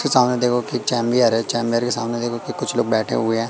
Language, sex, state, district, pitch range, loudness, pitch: Hindi, male, Madhya Pradesh, Katni, 115-125 Hz, -20 LUFS, 120 Hz